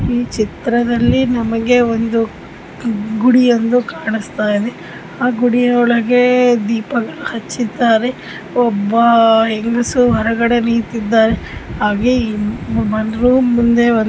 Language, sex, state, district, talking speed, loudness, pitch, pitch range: Kannada, female, Karnataka, Mysore, 70 wpm, -15 LUFS, 235 Hz, 225-245 Hz